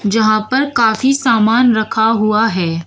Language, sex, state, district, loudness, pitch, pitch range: Hindi, female, Uttar Pradesh, Shamli, -13 LUFS, 225 Hz, 215-235 Hz